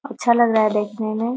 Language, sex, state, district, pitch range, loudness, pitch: Hindi, female, Bihar, Muzaffarpur, 215-235 Hz, -19 LUFS, 225 Hz